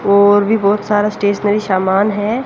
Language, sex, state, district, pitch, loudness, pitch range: Hindi, female, Haryana, Jhajjar, 205 Hz, -14 LUFS, 200-210 Hz